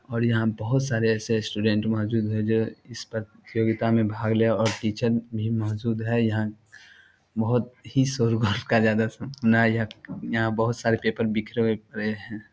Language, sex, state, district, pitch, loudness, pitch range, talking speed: Hindi, male, Bihar, Samastipur, 115 Hz, -25 LUFS, 110-115 Hz, 150 wpm